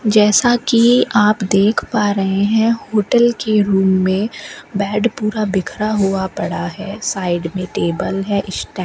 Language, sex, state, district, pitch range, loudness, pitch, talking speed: Hindi, female, Rajasthan, Bikaner, 195-215 Hz, -16 LUFS, 205 Hz, 155 wpm